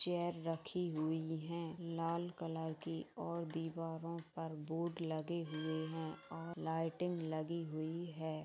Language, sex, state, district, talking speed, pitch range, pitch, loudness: Hindi, female, Bihar, Madhepura, 135 wpm, 160-170 Hz, 165 Hz, -43 LUFS